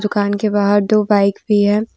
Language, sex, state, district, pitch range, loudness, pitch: Hindi, female, Jharkhand, Deoghar, 205-210 Hz, -15 LUFS, 205 Hz